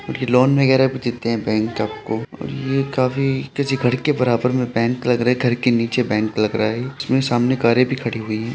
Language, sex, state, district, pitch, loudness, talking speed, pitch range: Hindi, male, Uttar Pradesh, Varanasi, 125 Hz, -19 LUFS, 240 wpm, 115-130 Hz